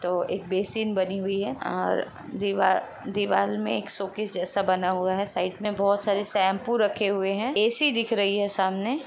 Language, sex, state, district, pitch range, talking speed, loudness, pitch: Hindi, female, Bihar, Jamui, 190-210 Hz, 185 wpm, -26 LUFS, 200 Hz